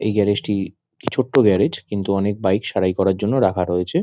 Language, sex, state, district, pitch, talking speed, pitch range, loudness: Bengali, male, West Bengal, Dakshin Dinajpur, 100 Hz, 195 wpm, 95-100 Hz, -20 LUFS